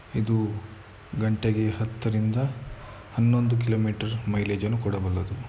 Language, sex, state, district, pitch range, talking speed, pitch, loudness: Kannada, male, Karnataka, Mysore, 105-115 Hz, 90 wpm, 110 Hz, -26 LUFS